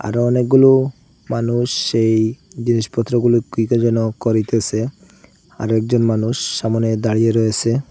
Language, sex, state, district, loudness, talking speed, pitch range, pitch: Bengali, male, Assam, Hailakandi, -17 LUFS, 105 wpm, 110-120 Hz, 115 Hz